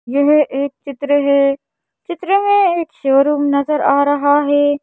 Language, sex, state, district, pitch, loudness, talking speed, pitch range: Hindi, female, Madhya Pradesh, Bhopal, 285 Hz, -15 LUFS, 150 wpm, 280-300 Hz